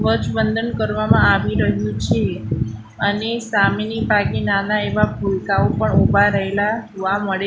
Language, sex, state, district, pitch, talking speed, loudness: Gujarati, female, Gujarat, Gandhinagar, 190 Hz, 120 wpm, -18 LUFS